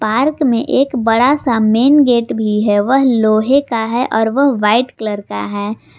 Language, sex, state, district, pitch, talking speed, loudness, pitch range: Hindi, female, Jharkhand, Ranchi, 230 Hz, 190 wpm, -14 LUFS, 215-265 Hz